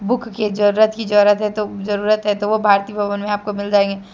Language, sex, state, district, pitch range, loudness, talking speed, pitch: Hindi, female, Jharkhand, Deoghar, 205-210 Hz, -17 LUFS, 245 wpm, 205 Hz